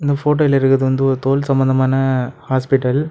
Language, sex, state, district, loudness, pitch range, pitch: Tamil, male, Tamil Nadu, Kanyakumari, -16 LUFS, 130-140 Hz, 135 Hz